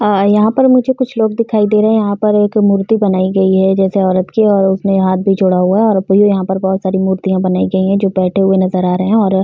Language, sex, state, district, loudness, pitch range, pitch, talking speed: Hindi, female, Uttar Pradesh, Varanasi, -12 LUFS, 190-210 Hz, 195 Hz, 290 wpm